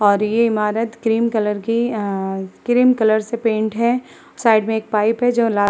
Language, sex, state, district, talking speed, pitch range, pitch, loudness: Hindi, female, Uttar Pradesh, Muzaffarnagar, 210 wpm, 210-235 Hz, 220 Hz, -18 LUFS